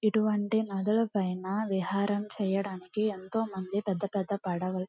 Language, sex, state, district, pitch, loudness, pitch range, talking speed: Telugu, female, Andhra Pradesh, Guntur, 200 Hz, -31 LUFS, 190-215 Hz, 125 wpm